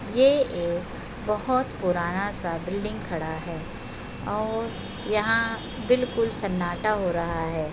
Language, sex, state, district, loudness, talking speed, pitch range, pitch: Hindi, female, Uttar Pradesh, Budaun, -26 LUFS, 115 wpm, 170-225 Hz, 195 Hz